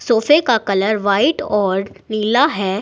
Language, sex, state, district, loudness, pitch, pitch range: Hindi, female, Uttar Pradesh, Saharanpur, -16 LUFS, 210 Hz, 200-235 Hz